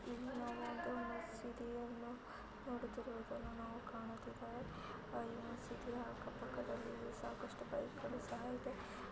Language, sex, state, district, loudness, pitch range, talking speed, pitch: Kannada, female, Karnataka, Chamarajanagar, -48 LUFS, 230-245 Hz, 105 wpm, 240 Hz